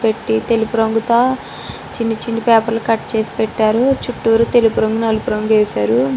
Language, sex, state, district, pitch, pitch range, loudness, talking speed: Telugu, female, Andhra Pradesh, Srikakulam, 225 Hz, 220-230 Hz, -16 LUFS, 155 wpm